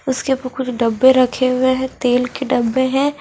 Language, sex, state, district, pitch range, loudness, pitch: Hindi, female, Haryana, Charkhi Dadri, 250-260 Hz, -17 LUFS, 260 Hz